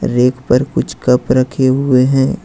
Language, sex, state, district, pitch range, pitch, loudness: Hindi, male, Jharkhand, Ranchi, 125-130 Hz, 130 Hz, -13 LUFS